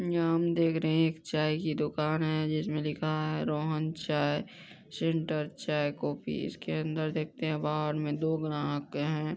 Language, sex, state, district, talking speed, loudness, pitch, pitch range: Hindi, male, Bihar, Madhepura, 175 wpm, -31 LUFS, 155 Hz, 150-160 Hz